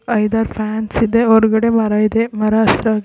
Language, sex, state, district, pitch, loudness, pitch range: Kannada, female, Karnataka, Raichur, 220 Hz, -15 LUFS, 215-225 Hz